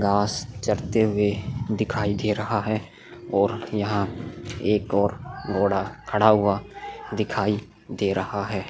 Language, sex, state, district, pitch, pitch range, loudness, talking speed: Hindi, male, Goa, North and South Goa, 105 Hz, 100-110 Hz, -24 LUFS, 125 wpm